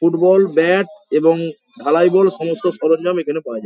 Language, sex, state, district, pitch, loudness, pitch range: Bengali, male, West Bengal, Paschim Medinipur, 170 Hz, -16 LUFS, 165-190 Hz